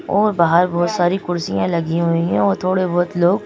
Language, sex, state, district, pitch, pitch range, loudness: Hindi, female, Madhya Pradesh, Bhopal, 175 Hz, 170-185 Hz, -17 LUFS